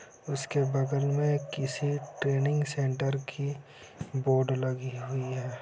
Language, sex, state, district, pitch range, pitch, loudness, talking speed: Hindi, male, Bihar, Saran, 130-145 Hz, 135 Hz, -30 LUFS, 130 wpm